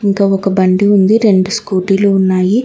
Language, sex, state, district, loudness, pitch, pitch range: Telugu, female, Telangana, Hyderabad, -11 LUFS, 195 Hz, 190-205 Hz